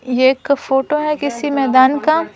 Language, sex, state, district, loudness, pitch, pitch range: Hindi, female, Bihar, Patna, -15 LUFS, 280 Hz, 260-300 Hz